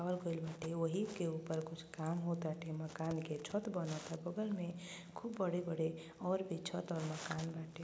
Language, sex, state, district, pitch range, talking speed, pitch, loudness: Bhojpuri, female, Uttar Pradesh, Gorakhpur, 160-175 Hz, 170 wpm, 165 Hz, -42 LUFS